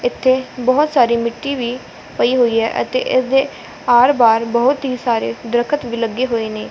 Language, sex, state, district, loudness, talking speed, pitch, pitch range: Punjabi, female, Punjab, Fazilka, -16 LUFS, 180 wpm, 245 Hz, 235-260 Hz